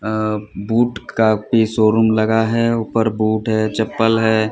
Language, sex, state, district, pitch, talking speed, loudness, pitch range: Hindi, male, Odisha, Sambalpur, 110 Hz, 145 wpm, -17 LUFS, 110-115 Hz